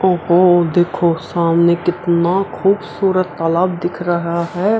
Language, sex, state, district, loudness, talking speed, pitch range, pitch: Hindi, female, Bihar, Araria, -16 LUFS, 115 wpm, 170-185 Hz, 175 Hz